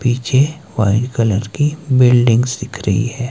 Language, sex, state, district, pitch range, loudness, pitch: Hindi, male, Himachal Pradesh, Shimla, 115-130 Hz, -15 LUFS, 120 Hz